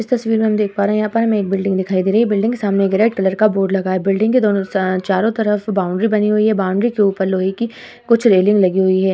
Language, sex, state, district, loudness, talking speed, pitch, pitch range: Hindi, female, Uttar Pradesh, Hamirpur, -16 LUFS, 310 wpm, 205 Hz, 190-220 Hz